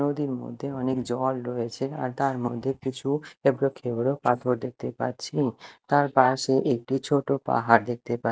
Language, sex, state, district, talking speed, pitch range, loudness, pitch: Bengali, male, Odisha, Malkangiri, 150 wpm, 125-140 Hz, -26 LUFS, 130 Hz